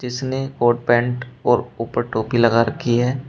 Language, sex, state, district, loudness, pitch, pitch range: Hindi, male, Uttar Pradesh, Shamli, -19 LUFS, 120 Hz, 120-130 Hz